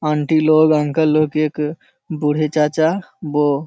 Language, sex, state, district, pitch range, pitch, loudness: Hindi, male, Bihar, Jahanabad, 150-155 Hz, 155 Hz, -17 LUFS